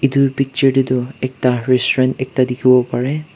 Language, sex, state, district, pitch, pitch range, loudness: Nagamese, male, Nagaland, Kohima, 130 Hz, 125-135 Hz, -16 LUFS